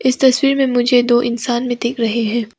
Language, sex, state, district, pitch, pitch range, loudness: Hindi, female, Arunachal Pradesh, Papum Pare, 245 Hz, 235-255 Hz, -15 LUFS